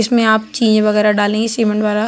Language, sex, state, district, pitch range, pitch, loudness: Hindi, male, Uttar Pradesh, Budaun, 210-225 Hz, 220 Hz, -14 LUFS